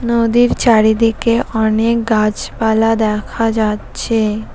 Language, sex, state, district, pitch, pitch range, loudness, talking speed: Bengali, female, West Bengal, Cooch Behar, 225 Hz, 220-230 Hz, -14 LUFS, 80 wpm